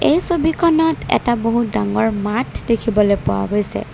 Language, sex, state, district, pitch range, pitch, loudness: Assamese, female, Assam, Kamrup Metropolitan, 205-315 Hz, 230 Hz, -17 LUFS